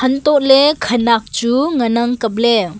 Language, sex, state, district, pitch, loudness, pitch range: Wancho, female, Arunachal Pradesh, Longding, 240 Hz, -14 LUFS, 230-270 Hz